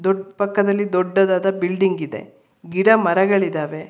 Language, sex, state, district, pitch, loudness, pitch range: Kannada, female, Karnataka, Bangalore, 190 Hz, -18 LUFS, 185-200 Hz